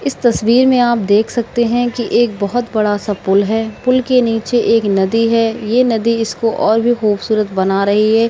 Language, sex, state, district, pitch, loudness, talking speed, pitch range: Hindi, female, Uttar Pradesh, Budaun, 225 Hz, -14 LUFS, 200 wpm, 210-240 Hz